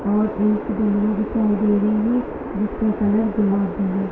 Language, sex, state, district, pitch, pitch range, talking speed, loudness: Hindi, female, Bihar, Sitamarhi, 210 Hz, 205-215 Hz, 100 wpm, -20 LUFS